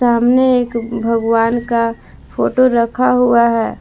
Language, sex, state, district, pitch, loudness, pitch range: Hindi, female, Jharkhand, Palamu, 235 Hz, -14 LUFS, 230-250 Hz